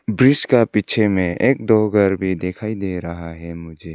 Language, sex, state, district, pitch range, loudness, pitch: Hindi, male, Arunachal Pradesh, Longding, 85-110 Hz, -17 LUFS, 95 Hz